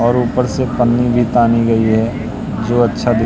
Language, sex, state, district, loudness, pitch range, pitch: Hindi, male, Madhya Pradesh, Katni, -15 LUFS, 115-120 Hz, 120 Hz